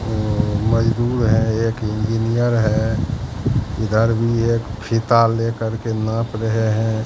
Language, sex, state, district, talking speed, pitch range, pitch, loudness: Hindi, male, Bihar, Katihar, 125 wpm, 110-115 Hz, 115 Hz, -19 LUFS